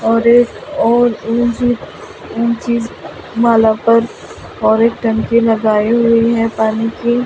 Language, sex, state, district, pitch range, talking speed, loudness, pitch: Hindi, female, Delhi, New Delhi, 225-235 Hz, 105 wpm, -13 LUFS, 230 Hz